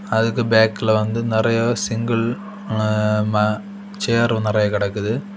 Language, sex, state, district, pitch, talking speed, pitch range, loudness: Tamil, male, Tamil Nadu, Kanyakumari, 110 Hz, 110 wpm, 105-115 Hz, -19 LUFS